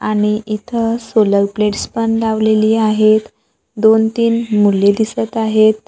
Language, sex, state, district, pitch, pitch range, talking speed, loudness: Marathi, female, Maharashtra, Gondia, 220 Hz, 215-225 Hz, 120 wpm, -14 LUFS